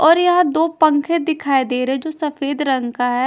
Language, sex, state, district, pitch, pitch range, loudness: Hindi, female, Punjab, Kapurthala, 295 Hz, 265-320 Hz, -17 LUFS